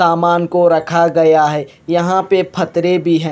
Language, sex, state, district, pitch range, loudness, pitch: Hindi, male, Punjab, Kapurthala, 165-175 Hz, -14 LUFS, 170 Hz